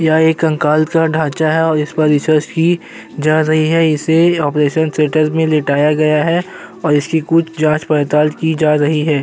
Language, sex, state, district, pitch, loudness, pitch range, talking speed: Hindi, male, Uttar Pradesh, Jyotiba Phule Nagar, 155 Hz, -14 LUFS, 150-160 Hz, 190 wpm